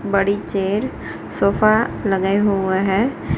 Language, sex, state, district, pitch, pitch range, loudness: Hindi, female, Gujarat, Gandhinagar, 200 Hz, 195-215 Hz, -19 LUFS